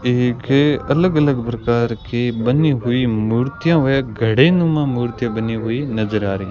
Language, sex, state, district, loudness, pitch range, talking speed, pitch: Hindi, male, Rajasthan, Bikaner, -17 LUFS, 115-140 Hz, 165 wpm, 120 Hz